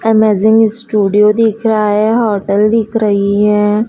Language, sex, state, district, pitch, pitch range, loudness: Hindi, female, Madhya Pradesh, Dhar, 215 Hz, 210-220 Hz, -11 LUFS